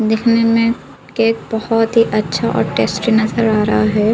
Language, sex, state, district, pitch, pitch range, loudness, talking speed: Hindi, female, Uttar Pradesh, Budaun, 220 Hz, 215-230 Hz, -15 LUFS, 175 wpm